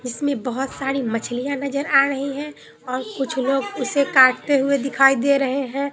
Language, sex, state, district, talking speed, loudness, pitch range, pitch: Hindi, female, Bihar, Katihar, 180 wpm, -20 LUFS, 260-280 Hz, 270 Hz